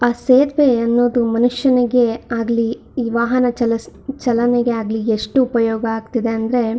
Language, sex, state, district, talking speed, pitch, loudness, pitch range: Kannada, female, Karnataka, Shimoga, 105 wpm, 240 Hz, -17 LUFS, 230-245 Hz